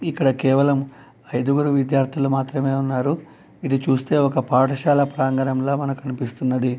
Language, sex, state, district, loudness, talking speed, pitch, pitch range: Telugu, male, Telangana, Nalgonda, -21 LUFS, 115 wpm, 135 Hz, 130-140 Hz